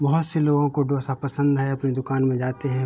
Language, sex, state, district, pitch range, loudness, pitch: Hindi, male, Uttar Pradesh, Hamirpur, 135-145 Hz, -23 LUFS, 140 Hz